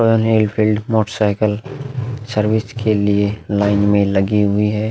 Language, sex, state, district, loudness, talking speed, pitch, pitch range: Hindi, male, Bihar, Vaishali, -17 LUFS, 135 wpm, 105 Hz, 100-110 Hz